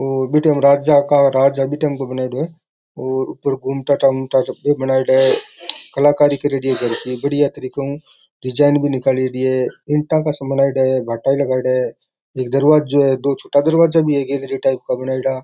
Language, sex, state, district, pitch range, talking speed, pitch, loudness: Rajasthani, male, Rajasthan, Nagaur, 130-145 Hz, 185 wpm, 135 Hz, -17 LUFS